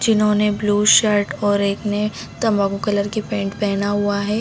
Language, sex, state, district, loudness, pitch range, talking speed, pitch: Hindi, female, Chhattisgarh, Bastar, -18 LUFS, 200-210 Hz, 175 wpm, 205 Hz